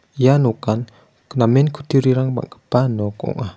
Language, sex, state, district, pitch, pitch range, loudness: Garo, male, Meghalaya, West Garo Hills, 130 Hz, 115-135 Hz, -18 LUFS